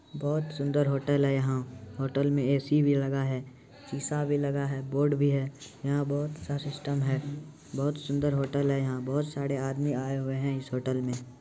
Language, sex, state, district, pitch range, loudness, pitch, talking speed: Maithili, male, Bihar, Supaul, 135-145 Hz, -30 LUFS, 140 Hz, 190 wpm